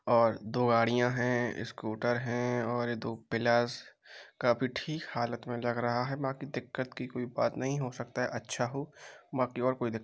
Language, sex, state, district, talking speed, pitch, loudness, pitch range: Hindi, male, Uttar Pradesh, Jalaun, 190 wpm, 120 Hz, -32 LUFS, 120-125 Hz